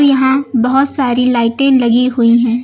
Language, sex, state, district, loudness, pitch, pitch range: Hindi, female, Uttar Pradesh, Lucknow, -11 LUFS, 250 Hz, 240-270 Hz